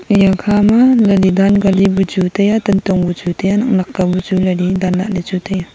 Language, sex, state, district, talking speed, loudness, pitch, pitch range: Wancho, female, Arunachal Pradesh, Longding, 230 wpm, -13 LUFS, 190 Hz, 185-200 Hz